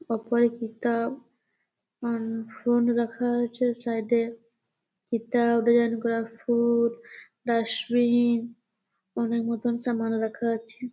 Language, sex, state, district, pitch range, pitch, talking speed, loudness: Bengali, female, West Bengal, Malda, 225-240 Hz, 235 Hz, 100 wpm, -26 LUFS